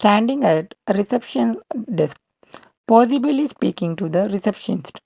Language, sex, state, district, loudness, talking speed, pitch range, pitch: English, male, Karnataka, Bangalore, -20 LUFS, 85 wpm, 200-250 Hz, 215 Hz